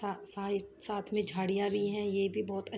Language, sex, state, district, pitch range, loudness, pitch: Hindi, female, Jharkhand, Sahebganj, 195-205 Hz, -34 LUFS, 200 Hz